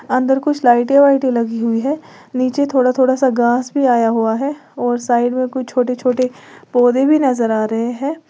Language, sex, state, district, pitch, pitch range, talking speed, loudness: Hindi, female, Uttar Pradesh, Lalitpur, 255 Hz, 240-270 Hz, 200 wpm, -16 LUFS